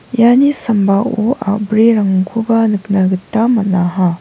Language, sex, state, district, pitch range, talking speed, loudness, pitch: Garo, female, Meghalaya, West Garo Hills, 195-230 Hz, 85 wpm, -13 LUFS, 215 Hz